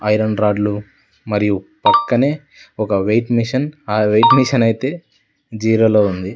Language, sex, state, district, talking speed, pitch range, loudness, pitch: Telugu, male, Andhra Pradesh, Sri Satya Sai, 130 wpm, 105-130 Hz, -16 LUFS, 110 Hz